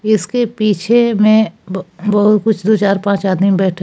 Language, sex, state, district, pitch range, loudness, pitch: Hindi, female, Jharkhand, Palamu, 195-220 Hz, -13 LUFS, 205 Hz